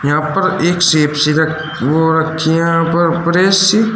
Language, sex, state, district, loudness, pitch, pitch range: Hindi, male, Uttar Pradesh, Shamli, -13 LUFS, 165 Hz, 155-175 Hz